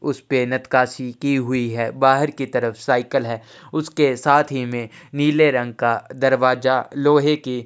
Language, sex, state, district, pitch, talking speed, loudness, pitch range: Hindi, male, Chhattisgarh, Sukma, 130 Hz, 170 wpm, -19 LUFS, 125-145 Hz